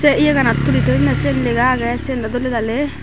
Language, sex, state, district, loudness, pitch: Chakma, female, Tripura, Dhalai, -16 LUFS, 235 Hz